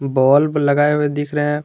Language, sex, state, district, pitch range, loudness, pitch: Hindi, male, Jharkhand, Garhwa, 140-150 Hz, -16 LUFS, 145 Hz